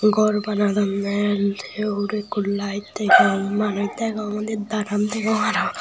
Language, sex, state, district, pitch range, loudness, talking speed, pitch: Chakma, male, Tripura, Unakoti, 200-210 Hz, -21 LUFS, 135 wpm, 210 Hz